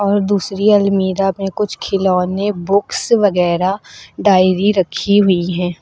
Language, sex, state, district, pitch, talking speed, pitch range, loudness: Hindi, female, Uttar Pradesh, Lucknow, 195 Hz, 125 wpm, 185-205 Hz, -15 LUFS